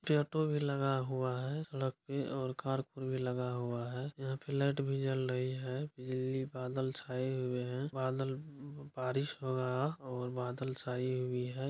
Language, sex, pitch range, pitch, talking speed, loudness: Angika, male, 125-140 Hz, 130 Hz, 165 wpm, -37 LUFS